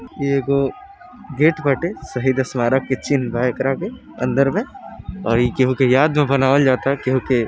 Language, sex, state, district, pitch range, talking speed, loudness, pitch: Bhojpuri, male, Uttar Pradesh, Deoria, 125-145 Hz, 160 wpm, -18 LUFS, 135 Hz